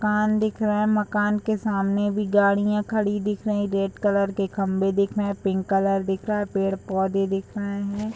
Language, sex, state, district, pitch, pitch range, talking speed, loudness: Hindi, female, Bihar, Madhepura, 205 Hz, 195-210 Hz, 190 wpm, -24 LUFS